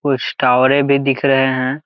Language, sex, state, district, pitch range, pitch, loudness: Hindi, male, Jharkhand, Jamtara, 130-140 Hz, 135 Hz, -14 LUFS